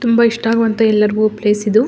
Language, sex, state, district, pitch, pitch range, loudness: Kannada, female, Karnataka, Dakshina Kannada, 220 Hz, 210-230 Hz, -14 LUFS